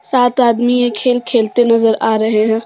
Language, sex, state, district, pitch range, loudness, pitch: Hindi, female, Jharkhand, Deoghar, 220-245 Hz, -13 LUFS, 235 Hz